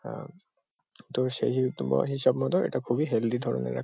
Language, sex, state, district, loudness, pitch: Bengali, male, West Bengal, Kolkata, -28 LUFS, 115 Hz